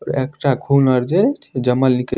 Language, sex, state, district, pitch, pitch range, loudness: Maithili, male, Bihar, Madhepura, 130 Hz, 125-140 Hz, -17 LUFS